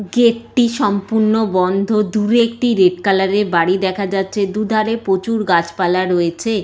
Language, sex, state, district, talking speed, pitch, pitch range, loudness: Bengali, female, West Bengal, Jalpaiguri, 145 wpm, 205 Hz, 190-220 Hz, -16 LUFS